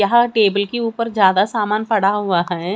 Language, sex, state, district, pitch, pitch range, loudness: Hindi, female, Haryana, Charkhi Dadri, 210 Hz, 195-230 Hz, -17 LUFS